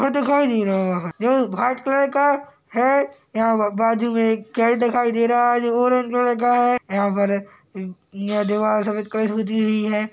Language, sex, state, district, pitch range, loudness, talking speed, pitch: Hindi, male, Uttarakhand, Tehri Garhwal, 210-245 Hz, -20 LUFS, 205 wpm, 230 Hz